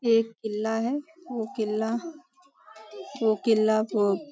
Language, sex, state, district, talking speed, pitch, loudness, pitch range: Hindi, female, Maharashtra, Nagpur, 125 wpm, 225 Hz, -27 LUFS, 215-260 Hz